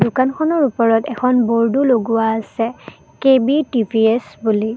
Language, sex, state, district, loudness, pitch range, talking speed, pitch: Assamese, female, Assam, Kamrup Metropolitan, -16 LUFS, 225-260 Hz, 115 wpm, 235 Hz